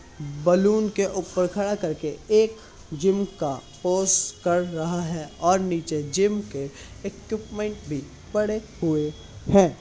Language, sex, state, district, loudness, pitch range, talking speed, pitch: Hindi, male, Uttar Pradesh, Hamirpur, -24 LUFS, 155-200 Hz, 135 wpm, 180 Hz